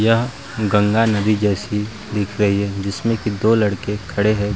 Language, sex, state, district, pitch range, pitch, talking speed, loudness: Hindi, male, Bihar, Vaishali, 100-110 Hz, 105 Hz, 170 wpm, -19 LUFS